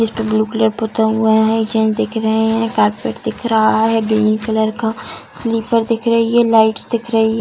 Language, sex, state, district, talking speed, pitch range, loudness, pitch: Hindi, female, Bihar, Samastipur, 220 wpm, 220-225 Hz, -16 LUFS, 220 Hz